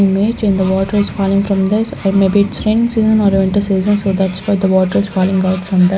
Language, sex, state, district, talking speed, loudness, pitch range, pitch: English, female, Chandigarh, Chandigarh, 270 wpm, -14 LUFS, 190-205 Hz, 195 Hz